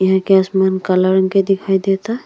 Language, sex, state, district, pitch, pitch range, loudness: Bhojpuri, female, Uttar Pradesh, Deoria, 190 Hz, 190-195 Hz, -15 LUFS